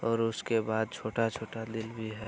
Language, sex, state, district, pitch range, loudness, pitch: Hindi, male, Bihar, Araria, 110-115 Hz, -33 LUFS, 110 Hz